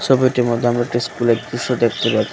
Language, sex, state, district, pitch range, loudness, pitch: Bengali, male, Tripura, West Tripura, 115-125 Hz, -18 LUFS, 120 Hz